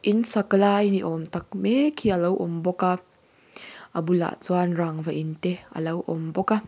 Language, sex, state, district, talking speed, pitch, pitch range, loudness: Mizo, female, Mizoram, Aizawl, 195 wpm, 180 Hz, 170-200 Hz, -22 LUFS